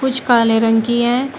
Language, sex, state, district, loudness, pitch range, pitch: Hindi, female, Uttar Pradesh, Shamli, -15 LUFS, 225-260 Hz, 240 Hz